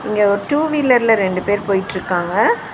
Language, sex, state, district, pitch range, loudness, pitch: Tamil, female, Tamil Nadu, Chennai, 190-250 Hz, -16 LUFS, 205 Hz